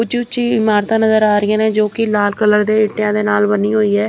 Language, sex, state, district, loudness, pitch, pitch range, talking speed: Punjabi, female, Chandigarh, Chandigarh, -14 LUFS, 215 Hz, 210-220 Hz, 265 wpm